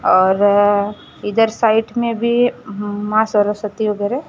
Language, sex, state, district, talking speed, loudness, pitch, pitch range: Hindi, female, Maharashtra, Gondia, 140 wpm, -16 LUFS, 210 Hz, 205-225 Hz